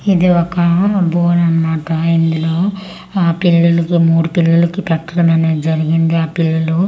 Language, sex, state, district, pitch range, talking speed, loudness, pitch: Telugu, female, Andhra Pradesh, Manyam, 165-175 Hz, 120 wpm, -14 LUFS, 170 Hz